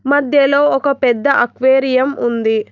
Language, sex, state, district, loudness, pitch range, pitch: Telugu, female, Telangana, Hyderabad, -14 LUFS, 240-280 Hz, 265 Hz